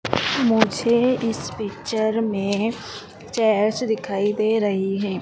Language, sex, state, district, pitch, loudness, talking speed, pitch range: Hindi, female, Madhya Pradesh, Dhar, 220 Hz, -21 LUFS, 105 wpm, 205-225 Hz